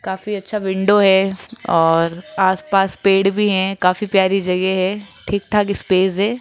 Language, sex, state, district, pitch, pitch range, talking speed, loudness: Hindi, female, Rajasthan, Jaipur, 195 Hz, 190-205 Hz, 160 wpm, -17 LUFS